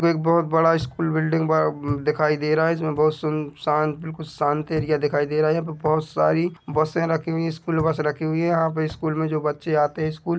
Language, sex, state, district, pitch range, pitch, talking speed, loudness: Hindi, male, Chhattisgarh, Bilaspur, 150-165 Hz, 155 Hz, 240 wpm, -22 LUFS